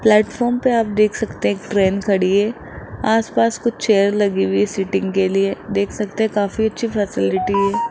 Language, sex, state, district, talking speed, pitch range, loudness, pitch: Hindi, male, Rajasthan, Jaipur, 190 wpm, 195-220 Hz, -18 LUFS, 205 Hz